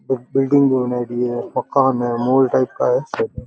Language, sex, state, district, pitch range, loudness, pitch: Rajasthani, male, Rajasthan, Nagaur, 125-135 Hz, -18 LUFS, 130 Hz